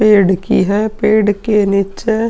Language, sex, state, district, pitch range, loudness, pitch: Hindi, male, Uttar Pradesh, Hamirpur, 200-215 Hz, -13 LUFS, 210 Hz